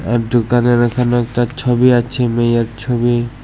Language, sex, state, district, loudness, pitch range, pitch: Bengali, male, Tripura, West Tripura, -15 LUFS, 120-125 Hz, 120 Hz